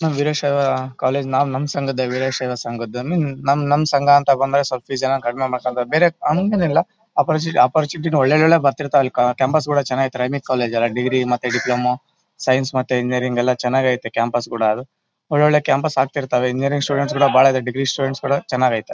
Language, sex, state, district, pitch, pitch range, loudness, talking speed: Kannada, male, Karnataka, Bellary, 135 Hz, 125-145 Hz, -18 LUFS, 165 wpm